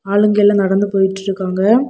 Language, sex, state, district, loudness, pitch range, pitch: Tamil, female, Tamil Nadu, Kanyakumari, -15 LUFS, 190-205 Hz, 200 Hz